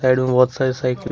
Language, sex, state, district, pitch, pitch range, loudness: Hindi, male, Jharkhand, Ranchi, 130 Hz, 125-130 Hz, -18 LUFS